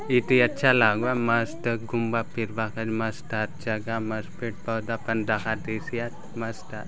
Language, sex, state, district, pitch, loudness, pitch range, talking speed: Halbi, male, Chhattisgarh, Bastar, 115 Hz, -26 LUFS, 110-120 Hz, 175 wpm